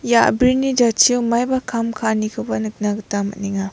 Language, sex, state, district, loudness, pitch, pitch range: Garo, female, Meghalaya, West Garo Hills, -18 LUFS, 230 Hz, 205-245 Hz